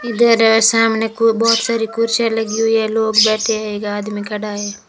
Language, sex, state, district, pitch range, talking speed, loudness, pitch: Hindi, female, Rajasthan, Bikaner, 215-230 Hz, 195 wpm, -15 LUFS, 225 Hz